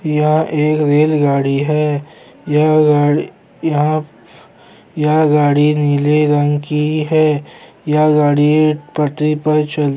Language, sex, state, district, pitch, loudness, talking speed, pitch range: Hindi, male, Chhattisgarh, Kabirdham, 150 Hz, -14 LUFS, 110 wpm, 145-155 Hz